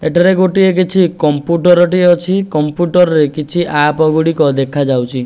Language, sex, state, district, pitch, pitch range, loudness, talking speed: Odia, male, Odisha, Nuapada, 165 Hz, 150-180 Hz, -12 LUFS, 135 wpm